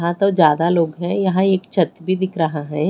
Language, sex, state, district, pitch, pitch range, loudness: Hindi, female, Odisha, Khordha, 175 Hz, 165-190 Hz, -18 LUFS